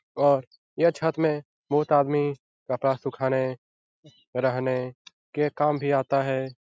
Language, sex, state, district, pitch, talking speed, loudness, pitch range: Hindi, male, Bihar, Jahanabad, 140 Hz, 125 wpm, -26 LUFS, 130-145 Hz